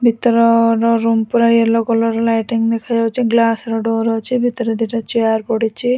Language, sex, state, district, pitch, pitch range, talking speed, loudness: Odia, female, Odisha, Khordha, 230 Hz, 225-230 Hz, 160 wpm, -15 LUFS